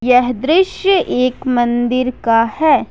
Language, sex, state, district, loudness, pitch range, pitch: Hindi, female, Jharkhand, Ranchi, -15 LUFS, 240-310 Hz, 255 Hz